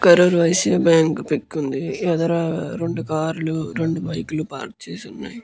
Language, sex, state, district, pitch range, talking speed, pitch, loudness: Telugu, male, Andhra Pradesh, Guntur, 160-175 Hz, 130 wpm, 165 Hz, -20 LUFS